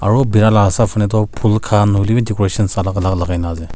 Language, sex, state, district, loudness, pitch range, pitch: Nagamese, male, Nagaland, Kohima, -15 LUFS, 95-110 Hz, 105 Hz